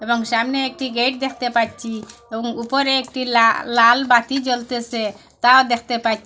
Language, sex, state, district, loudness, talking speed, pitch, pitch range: Bengali, female, Assam, Hailakandi, -18 LUFS, 145 wpm, 240 Hz, 230-255 Hz